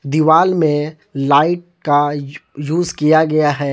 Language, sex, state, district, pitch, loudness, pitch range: Hindi, male, Jharkhand, Palamu, 150 Hz, -15 LUFS, 145-160 Hz